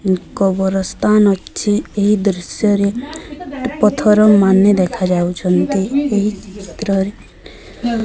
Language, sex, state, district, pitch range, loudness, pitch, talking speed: Odia, female, Odisha, Sambalpur, 190-215 Hz, -15 LUFS, 205 Hz, 75 wpm